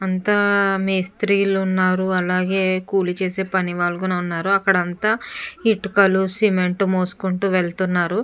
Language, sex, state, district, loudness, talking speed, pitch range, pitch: Telugu, female, Andhra Pradesh, Chittoor, -19 LUFS, 110 wpm, 185-200 Hz, 190 Hz